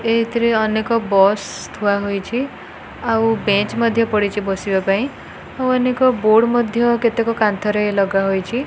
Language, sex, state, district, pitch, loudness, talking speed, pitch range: Odia, female, Odisha, Khordha, 220 Hz, -17 LUFS, 130 wpm, 200-235 Hz